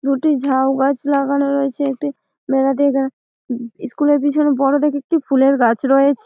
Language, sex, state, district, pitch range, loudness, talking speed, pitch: Bengali, female, West Bengal, Malda, 270-285 Hz, -17 LUFS, 165 wpm, 275 Hz